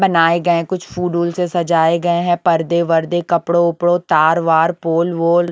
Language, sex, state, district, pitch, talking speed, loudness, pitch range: Hindi, female, Punjab, Kapurthala, 170 Hz, 205 wpm, -15 LUFS, 165-175 Hz